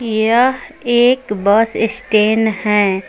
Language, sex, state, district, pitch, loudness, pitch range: Hindi, female, Uttar Pradesh, Lucknow, 225 Hz, -14 LUFS, 210-240 Hz